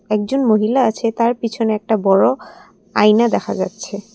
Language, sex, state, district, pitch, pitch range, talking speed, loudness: Bengali, female, Assam, Kamrup Metropolitan, 220 Hz, 210-235 Hz, 145 wpm, -16 LUFS